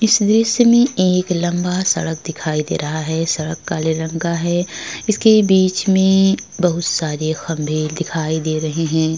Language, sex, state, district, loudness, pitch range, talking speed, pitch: Hindi, female, Uttar Pradesh, Jalaun, -17 LUFS, 160-190 Hz, 165 wpm, 170 Hz